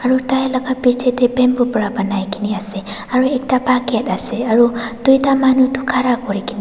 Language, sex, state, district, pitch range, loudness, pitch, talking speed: Nagamese, female, Nagaland, Dimapur, 220-255 Hz, -16 LUFS, 245 Hz, 170 wpm